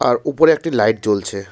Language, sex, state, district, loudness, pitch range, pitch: Bengali, male, West Bengal, Darjeeling, -16 LUFS, 100-150 Hz, 110 Hz